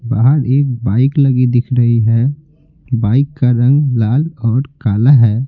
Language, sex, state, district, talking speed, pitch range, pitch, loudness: Hindi, male, Bihar, Patna, 155 wpm, 120-140 Hz, 130 Hz, -13 LUFS